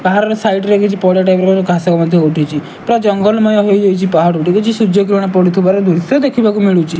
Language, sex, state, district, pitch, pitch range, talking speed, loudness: Odia, male, Odisha, Malkangiri, 190 Hz, 175-210 Hz, 190 wpm, -12 LUFS